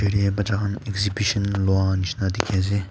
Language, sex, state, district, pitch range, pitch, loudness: Nagamese, male, Nagaland, Kohima, 95-105 Hz, 100 Hz, -23 LUFS